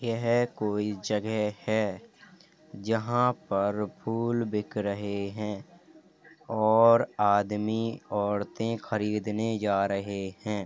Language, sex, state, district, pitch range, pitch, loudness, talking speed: Hindi, male, Uttar Pradesh, Hamirpur, 105-115 Hz, 110 Hz, -28 LUFS, 95 wpm